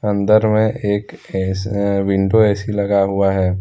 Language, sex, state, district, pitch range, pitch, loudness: Hindi, male, Jharkhand, Deoghar, 95-105 Hz, 100 Hz, -17 LUFS